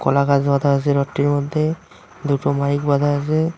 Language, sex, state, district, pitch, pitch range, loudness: Bengali, male, West Bengal, Cooch Behar, 145 Hz, 140-155 Hz, -19 LUFS